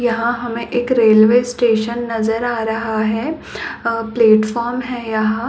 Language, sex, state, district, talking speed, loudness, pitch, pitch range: Hindi, female, Chhattisgarh, Balrampur, 155 wpm, -17 LUFS, 230 Hz, 220-240 Hz